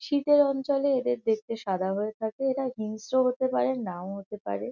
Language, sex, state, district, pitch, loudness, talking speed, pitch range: Bengali, female, West Bengal, Kolkata, 230 Hz, -28 LUFS, 175 wpm, 210-270 Hz